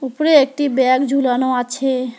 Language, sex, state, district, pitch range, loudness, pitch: Bengali, female, West Bengal, Alipurduar, 255-275 Hz, -16 LUFS, 260 Hz